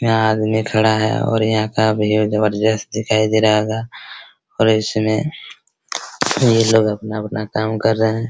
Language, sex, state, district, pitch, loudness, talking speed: Hindi, male, Bihar, Araria, 110 Hz, -17 LUFS, 175 wpm